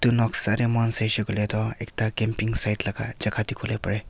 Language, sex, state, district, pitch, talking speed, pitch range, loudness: Nagamese, male, Nagaland, Kohima, 110 Hz, 205 wpm, 105-115 Hz, -22 LUFS